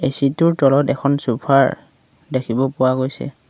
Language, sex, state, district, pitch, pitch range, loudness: Assamese, male, Assam, Sonitpur, 135 Hz, 130-140 Hz, -18 LUFS